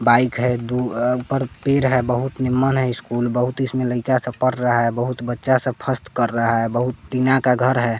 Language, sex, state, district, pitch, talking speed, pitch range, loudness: Hindi, male, Bihar, West Champaran, 125 Hz, 225 wpm, 120-130 Hz, -20 LUFS